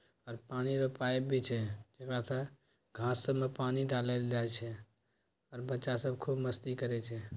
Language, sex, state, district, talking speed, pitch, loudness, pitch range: Maithili, male, Bihar, Bhagalpur, 170 wpm, 125 Hz, -36 LUFS, 120-130 Hz